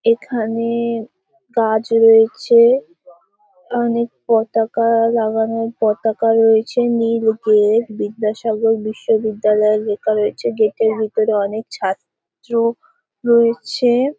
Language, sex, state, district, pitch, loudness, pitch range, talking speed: Bengali, female, West Bengal, Paschim Medinipur, 225 Hz, -16 LUFS, 220-235 Hz, 85 wpm